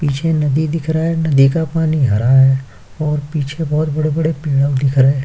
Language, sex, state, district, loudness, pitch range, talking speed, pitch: Hindi, male, Uttar Pradesh, Jyotiba Phule Nagar, -15 LUFS, 135-160 Hz, 205 wpm, 150 Hz